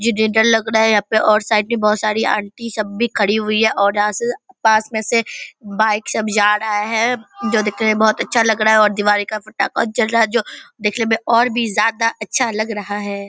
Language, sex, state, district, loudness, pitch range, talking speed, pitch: Hindi, female, Bihar, Purnia, -16 LUFS, 210-230 Hz, 250 wpm, 220 Hz